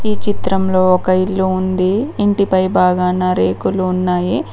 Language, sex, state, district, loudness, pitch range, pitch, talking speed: Telugu, female, Telangana, Mahabubabad, -15 LUFS, 180-195 Hz, 185 Hz, 130 wpm